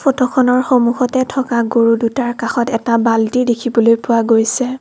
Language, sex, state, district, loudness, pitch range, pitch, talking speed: Assamese, female, Assam, Kamrup Metropolitan, -14 LUFS, 230-255 Hz, 240 Hz, 135 wpm